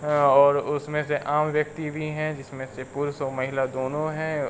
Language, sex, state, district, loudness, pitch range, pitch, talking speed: Hindi, male, Uttar Pradesh, Varanasi, -25 LUFS, 135-150 Hz, 145 Hz, 185 wpm